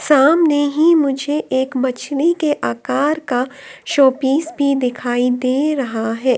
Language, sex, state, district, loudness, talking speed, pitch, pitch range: Hindi, female, Delhi, New Delhi, -17 LUFS, 130 wpm, 275 Hz, 255-295 Hz